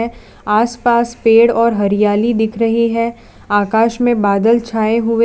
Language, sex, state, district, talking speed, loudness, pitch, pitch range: Hindi, female, Gujarat, Valsad, 135 wpm, -14 LUFS, 230 Hz, 215-235 Hz